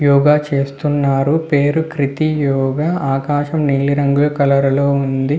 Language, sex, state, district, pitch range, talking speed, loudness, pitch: Telugu, male, Andhra Pradesh, Visakhapatnam, 140-150 Hz, 120 wpm, -15 LUFS, 140 Hz